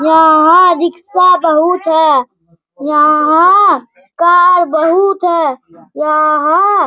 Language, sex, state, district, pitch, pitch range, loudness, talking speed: Hindi, male, Bihar, Bhagalpur, 320 Hz, 300-355 Hz, -10 LUFS, 105 wpm